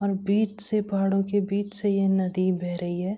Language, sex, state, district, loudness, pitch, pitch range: Hindi, female, Uttarakhand, Uttarkashi, -25 LUFS, 195 Hz, 185-205 Hz